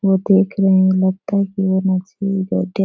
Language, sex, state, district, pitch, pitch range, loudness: Hindi, female, Bihar, Jahanabad, 190 Hz, 190-195 Hz, -17 LUFS